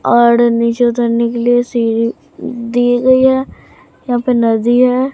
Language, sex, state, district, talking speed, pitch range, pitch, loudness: Hindi, female, Bihar, Katihar, 150 wpm, 235-250 Hz, 240 Hz, -13 LUFS